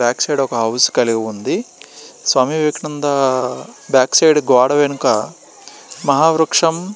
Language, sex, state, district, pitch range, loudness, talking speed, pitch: Telugu, male, Andhra Pradesh, Srikakulam, 125-155 Hz, -15 LUFS, 105 wpm, 140 Hz